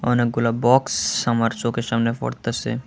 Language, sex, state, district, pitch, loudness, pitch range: Bengali, male, Tripura, West Tripura, 115 Hz, -21 LUFS, 115-120 Hz